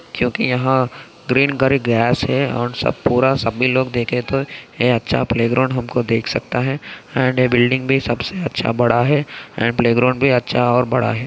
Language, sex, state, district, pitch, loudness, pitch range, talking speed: Hindi, male, Maharashtra, Aurangabad, 125 Hz, -17 LUFS, 120-135 Hz, 165 wpm